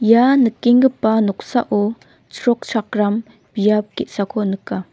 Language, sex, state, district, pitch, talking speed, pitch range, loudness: Garo, female, Meghalaya, North Garo Hills, 220 Hz, 85 wpm, 205-240 Hz, -18 LUFS